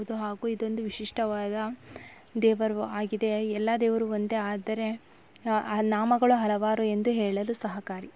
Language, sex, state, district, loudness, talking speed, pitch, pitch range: Kannada, female, Karnataka, Raichur, -28 LUFS, 125 wpm, 215 Hz, 210-225 Hz